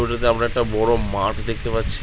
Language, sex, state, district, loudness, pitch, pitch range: Bengali, male, West Bengal, Jhargram, -21 LUFS, 115 Hz, 110-120 Hz